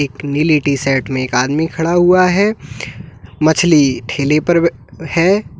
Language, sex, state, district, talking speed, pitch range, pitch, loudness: Hindi, male, Uttar Pradesh, Lalitpur, 150 wpm, 135-170 Hz, 150 Hz, -14 LUFS